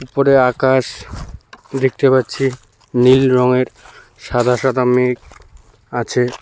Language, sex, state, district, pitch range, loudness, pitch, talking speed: Bengali, male, West Bengal, Cooch Behar, 120-130 Hz, -15 LUFS, 125 Hz, 95 wpm